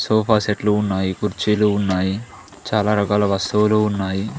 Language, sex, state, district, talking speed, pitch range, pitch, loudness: Telugu, male, Telangana, Mahabubabad, 125 wpm, 95-105 Hz, 105 Hz, -19 LUFS